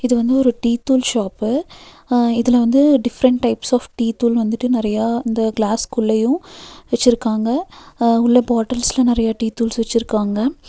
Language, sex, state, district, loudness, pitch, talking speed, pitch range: Tamil, female, Tamil Nadu, Nilgiris, -17 LUFS, 235 Hz, 145 wpm, 225-250 Hz